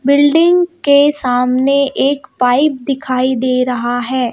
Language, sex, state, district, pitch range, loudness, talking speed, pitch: Hindi, female, Madhya Pradesh, Bhopal, 250-285 Hz, -13 LUFS, 125 wpm, 260 Hz